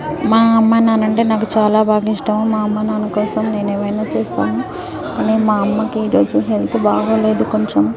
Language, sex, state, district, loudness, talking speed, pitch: Telugu, female, Telangana, Nalgonda, -16 LUFS, 190 wpm, 210 Hz